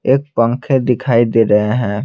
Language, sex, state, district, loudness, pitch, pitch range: Hindi, male, Bihar, Patna, -14 LUFS, 120 Hz, 110-130 Hz